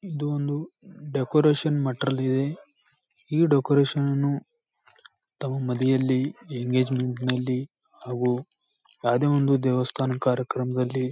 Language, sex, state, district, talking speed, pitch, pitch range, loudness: Kannada, male, Karnataka, Bijapur, 85 wpm, 135 Hz, 130-145 Hz, -25 LUFS